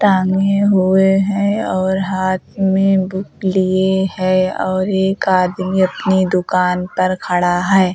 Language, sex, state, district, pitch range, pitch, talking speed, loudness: Hindi, female, Uttar Pradesh, Hamirpur, 185-190 Hz, 190 Hz, 130 wpm, -16 LUFS